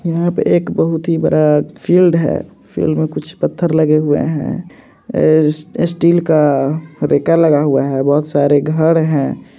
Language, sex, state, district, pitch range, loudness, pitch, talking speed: Hindi, male, Andhra Pradesh, Visakhapatnam, 145-165 Hz, -14 LUFS, 155 Hz, 150 wpm